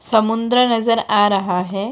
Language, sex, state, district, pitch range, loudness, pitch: Hindi, female, Bihar, Muzaffarpur, 200-230 Hz, -17 LUFS, 220 Hz